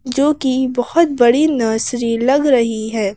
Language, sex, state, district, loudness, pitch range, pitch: Hindi, female, Madhya Pradesh, Bhopal, -15 LUFS, 230-280 Hz, 250 Hz